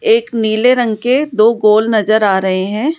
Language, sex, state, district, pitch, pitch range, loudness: Hindi, female, Rajasthan, Jaipur, 220 Hz, 215-250 Hz, -13 LUFS